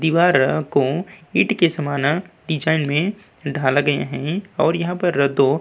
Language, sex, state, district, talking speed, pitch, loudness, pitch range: Hindi, male, Uttar Pradesh, Budaun, 160 wpm, 160 Hz, -19 LUFS, 145-175 Hz